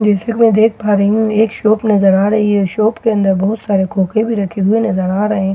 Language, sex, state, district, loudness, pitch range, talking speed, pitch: Hindi, female, Bihar, Katihar, -13 LUFS, 195-220 Hz, 280 wpm, 210 Hz